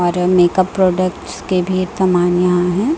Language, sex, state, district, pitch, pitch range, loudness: Hindi, female, Chhattisgarh, Raipur, 180 Hz, 180-185 Hz, -15 LUFS